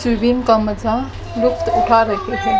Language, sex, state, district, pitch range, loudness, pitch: Hindi, female, Haryana, Jhajjar, 220-240 Hz, -17 LUFS, 230 Hz